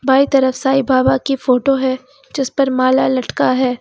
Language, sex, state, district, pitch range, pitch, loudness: Hindi, female, Uttar Pradesh, Lucknow, 255-270 Hz, 265 Hz, -15 LUFS